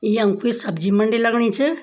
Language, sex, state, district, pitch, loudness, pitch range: Garhwali, female, Uttarakhand, Tehri Garhwal, 220 Hz, -19 LUFS, 205-235 Hz